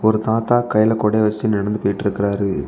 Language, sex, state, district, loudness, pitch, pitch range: Tamil, male, Tamil Nadu, Kanyakumari, -18 LUFS, 110 Hz, 100-110 Hz